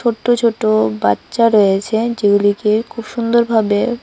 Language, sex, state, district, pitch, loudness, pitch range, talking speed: Bengali, female, Tripura, West Tripura, 220 Hz, -15 LUFS, 205-235 Hz, 105 wpm